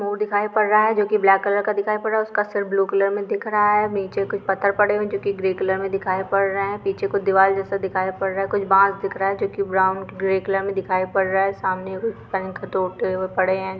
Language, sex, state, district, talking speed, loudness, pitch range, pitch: Hindi, female, Andhra Pradesh, Visakhapatnam, 240 wpm, -21 LUFS, 190-205 Hz, 195 Hz